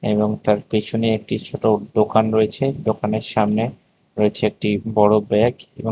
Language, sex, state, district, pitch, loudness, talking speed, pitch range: Bengali, male, Tripura, West Tripura, 110 Hz, -20 LUFS, 150 wpm, 105-110 Hz